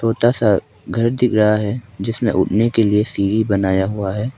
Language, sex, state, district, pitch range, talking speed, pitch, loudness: Hindi, male, Arunachal Pradesh, Papum Pare, 100-115 Hz, 190 wpm, 105 Hz, -17 LUFS